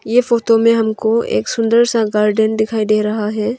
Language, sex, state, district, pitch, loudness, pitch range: Hindi, female, Arunachal Pradesh, Longding, 220 Hz, -15 LUFS, 215-230 Hz